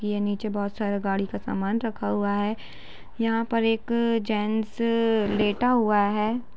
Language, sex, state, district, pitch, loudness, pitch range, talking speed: Hindi, female, Bihar, Jamui, 215 Hz, -25 LUFS, 205-230 Hz, 155 wpm